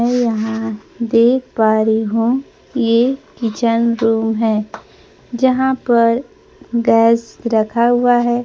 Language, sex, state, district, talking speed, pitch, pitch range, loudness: Hindi, female, Bihar, Kaimur, 115 wpm, 235 Hz, 225-245 Hz, -16 LUFS